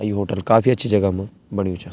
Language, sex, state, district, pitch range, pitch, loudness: Garhwali, male, Uttarakhand, Tehri Garhwal, 95-105 Hz, 100 Hz, -20 LUFS